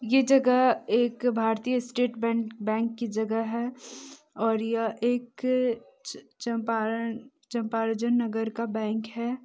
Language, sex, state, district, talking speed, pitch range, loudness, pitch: Hindi, female, Bihar, East Champaran, 115 wpm, 225-245 Hz, -27 LUFS, 235 Hz